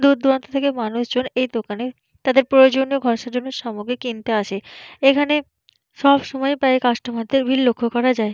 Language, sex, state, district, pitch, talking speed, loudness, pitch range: Bengali, female, West Bengal, Purulia, 255 Hz, 165 wpm, -19 LUFS, 240-270 Hz